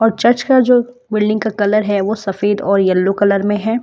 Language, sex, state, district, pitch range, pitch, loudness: Hindi, female, Delhi, New Delhi, 200-225 Hz, 210 Hz, -15 LUFS